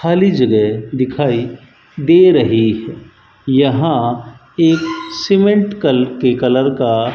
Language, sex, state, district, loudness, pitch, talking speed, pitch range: Hindi, male, Rajasthan, Bikaner, -14 LUFS, 130 Hz, 120 wpm, 120-165 Hz